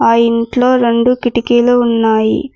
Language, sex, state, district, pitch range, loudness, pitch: Telugu, female, Telangana, Mahabubabad, 230-245 Hz, -12 LUFS, 240 Hz